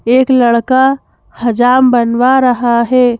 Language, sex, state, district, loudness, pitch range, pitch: Hindi, female, Madhya Pradesh, Bhopal, -11 LUFS, 235-255 Hz, 245 Hz